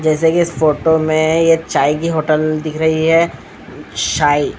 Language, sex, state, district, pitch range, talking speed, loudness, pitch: Hindi, male, Bihar, Katihar, 155-165 Hz, 170 wpm, -14 LUFS, 155 Hz